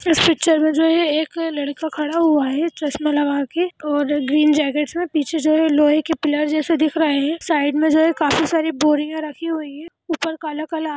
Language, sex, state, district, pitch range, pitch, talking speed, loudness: Hindi, female, Bihar, Jahanabad, 295-320 Hz, 310 Hz, 220 wpm, -19 LUFS